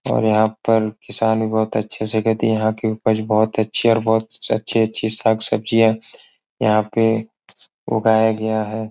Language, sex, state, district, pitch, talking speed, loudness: Hindi, male, Bihar, Jahanabad, 110 Hz, 170 wpm, -18 LUFS